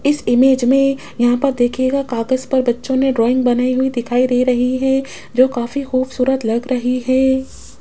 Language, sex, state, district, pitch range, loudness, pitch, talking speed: Hindi, female, Rajasthan, Jaipur, 245-265 Hz, -16 LUFS, 255 Hz, 175 wpm